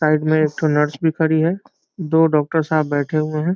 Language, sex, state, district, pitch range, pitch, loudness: Hindi, male, Bihar, Saran, 155-160 Hz, 155 Hz, -18 LUFS